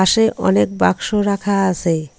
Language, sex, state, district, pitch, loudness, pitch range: Bengali, female, West Bengal, Cooch Behar, 190 Hz, -17 LUFS, 155-205 Hz